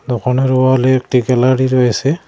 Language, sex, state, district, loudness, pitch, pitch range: Bengali, male, West Bengal, Cooch Behar, -13 LUFS, 130 Hz, 125-130 Hz